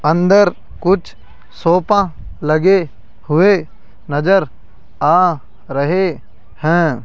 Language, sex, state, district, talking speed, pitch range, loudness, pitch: Hindi, male, Rajasthan, Jaipur, 75 wpm, 135-185 Hz, -15 LUFS, 165 Hz